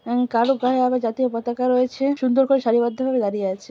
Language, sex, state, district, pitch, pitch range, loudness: Bengali, female, West Bengal, Malda, 250 Hz, 235-260 Hz, -20 LUFS